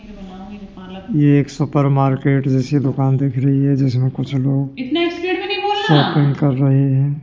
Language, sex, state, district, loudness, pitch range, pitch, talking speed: Hindi, male, Rajasthan, Jaipur, -16 LUFS, 135-190 Hz, 140 Hz, 135 wpm